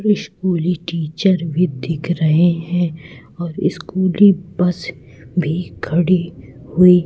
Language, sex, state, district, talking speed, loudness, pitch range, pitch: Hindi, female, Madhya Pradesh, Katni, 100 wpm, -18 LUFS, 160-180 Hz, 175 Hz